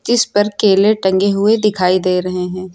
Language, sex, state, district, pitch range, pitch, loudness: Hindi, female, Uttar Pradesh, Lucknow, 185-210 Hz, 195 Hz, -14 LUFS